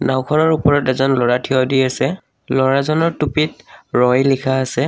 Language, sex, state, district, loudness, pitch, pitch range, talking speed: Assamese, male, Assam, Kamrup Metropolitan, -16 LUFS, 135 Hz, 130-150 Hz, 145 wpm